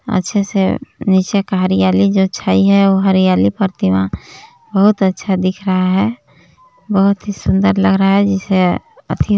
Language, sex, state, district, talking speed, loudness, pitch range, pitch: Hindi, male, Chhattisgarh, Balrampur, 155 wpm, -14 LUFS, 185-200 Hz, 190 Hz